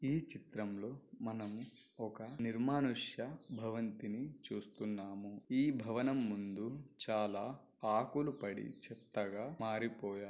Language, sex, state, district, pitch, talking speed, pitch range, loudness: Telugu, male, Andhra Pradesh, Guntur, 110 Hz, 70 wpm, 105-130 Hz, -41 LUFS